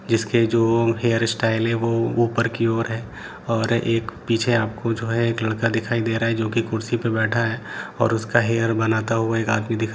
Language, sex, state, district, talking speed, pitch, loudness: Hindi, male, Bihar, Saran, 225 wpm, 115 Hz, -21 LUFS